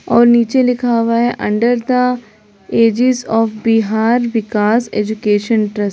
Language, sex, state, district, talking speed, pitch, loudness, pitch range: Hindi, female, Bihar, Gopalganj, 140 wpm, 230 Hz, -14 LUFS, 215-240 Hz